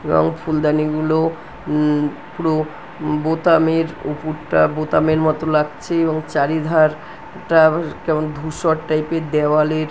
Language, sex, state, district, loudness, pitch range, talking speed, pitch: Bengali, female, West Bengal, North 24 Parganas, -18 LUFS, 150-160 Hz, 115 wpm, 155 Hz